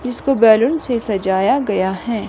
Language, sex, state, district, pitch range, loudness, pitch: Hindi, female, Himachal Pradesh, Shimla, 195-250 Hz, -16 LUFS, 225 Hz